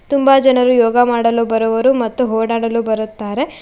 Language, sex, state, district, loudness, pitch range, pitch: Kannada, female, Karnataka, Bangalore, -14 LUFS, 225-255 Hz, 230 Hz